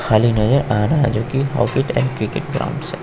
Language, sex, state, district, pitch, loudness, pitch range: Hindi, female, Bihar, West Champaran, 120 Hz, -18 LUFS, 110-135 Hz